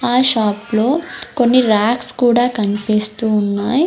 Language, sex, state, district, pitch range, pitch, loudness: Telugu, female, Andhra Pradesh, Sri Satya Sai, 210-245 Hz, 225 Hz, -15 LUFS